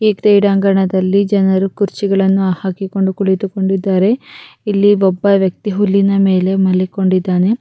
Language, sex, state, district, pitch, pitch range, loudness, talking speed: Kannada, female, Karnataka, Raichur, 195 Hz, 190-200 Hz, -14 LUFS, 105 wpm